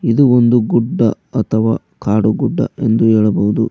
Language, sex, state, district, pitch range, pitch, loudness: Kannada, male, Karnataka, Koppal, 110-125 Hz, 115 Hz, -14 LUFS